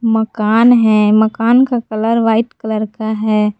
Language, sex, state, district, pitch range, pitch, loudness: Hindi, female, Jharkhand, Garhwa, 215-230 Hz, 220 Hz, -13 LUFS